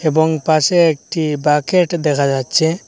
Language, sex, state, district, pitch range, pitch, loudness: Bengali, male, Assam, Hailakandi, 150-165 Hz, 160 Hz, -15 LUFS